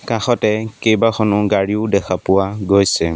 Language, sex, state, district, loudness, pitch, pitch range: Assamese, male, Assam, Sonitpur, -16 LUFS, 105 Hz, 95-110 Hz